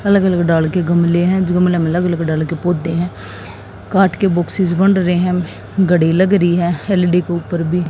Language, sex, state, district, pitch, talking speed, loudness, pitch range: Hindi, female, Haryana, Jhajjar, 175 Hz, 160 wpm, -15 LUFS, 165-180 Hz